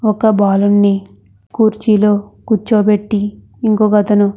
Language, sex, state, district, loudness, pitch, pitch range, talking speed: Telugu, female, Andhra Pradesh, Krishna, -13 LUFS, 210 Hz, 200-215 Hz, 85 wpm